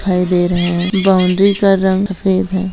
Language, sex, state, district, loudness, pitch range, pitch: Hindi, female, Bihar, Gaya, -14 LUFS, 180-195 Hz, 190 Hz